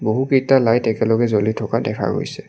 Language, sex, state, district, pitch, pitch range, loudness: Assamese, male, Assam, Kamrup Metropolitan, 115 Hz, 110-125 Hz, -18 LUFS